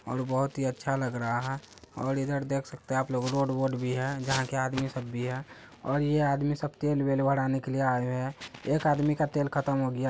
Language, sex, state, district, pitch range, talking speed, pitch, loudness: Hindi, male, Bihar, Araria, 130-140 Hz, 250 wpm, 135 Hz, -30 LUFS